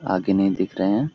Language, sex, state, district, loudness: Hindi, male, Bihar, Lakhisarai, -21 LUFS